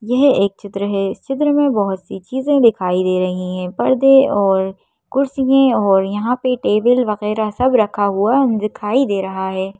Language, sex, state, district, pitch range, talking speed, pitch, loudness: Hindi, female, Madhya Pradesh, Bhopal, 195-260 Hz, 180 wpm, 210 Hz, -16 LUFS